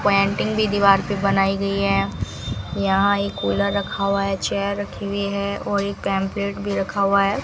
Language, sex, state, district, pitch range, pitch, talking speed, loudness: Hindi, female, Rajasthan, Bikaner, 195-200 Hz, 200 Hz, 195 wpm, -21 LUFS